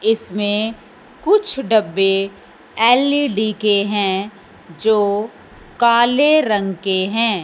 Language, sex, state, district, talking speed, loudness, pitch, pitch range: Hindi, male, Punjab, Fazilka, 90 wpm, -17 LUFS, 215 Hz, 200-235 Hz